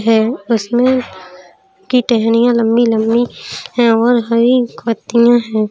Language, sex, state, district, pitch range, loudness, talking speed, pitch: Hindi, female, Uttar Pradesh, Jalaun, 225-245 Hz, -13 LUFS, 115 wpm, 235 Hz